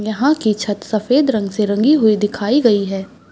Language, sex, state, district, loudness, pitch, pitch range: Hindi, female, Bihar, Madhepura, -16 LUFS, 215 Hz, 205-255 Hz